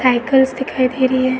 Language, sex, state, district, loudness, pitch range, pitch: Hindi, female, Uttar Pradesh, Etah, -16 LUFS, 255-265 Hz, 260 Hz